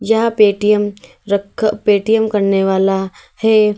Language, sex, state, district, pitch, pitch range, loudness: Hindi, female, Uttar Pradesh, Lalitpur, 210 Hz, 200-220 Hz, -15 LUFS